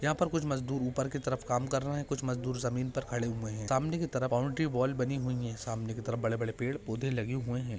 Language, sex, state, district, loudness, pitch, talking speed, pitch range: Hindi, male, Maharashtra, Pune, -33 LUFS, 130 Hz, 280 wpm, 120-135 Hz